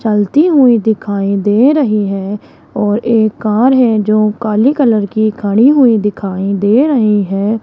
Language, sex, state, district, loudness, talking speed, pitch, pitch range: Hindi, female, Rajasthan, Jaipur, -11 LUFS, 155 wpm, 215 Hz, 205-240 Hz